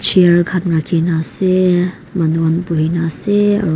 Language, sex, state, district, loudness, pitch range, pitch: Nagamese, female, Nagaland, Kohima, -15 LUFS, 165-185 Hz, 170 Hz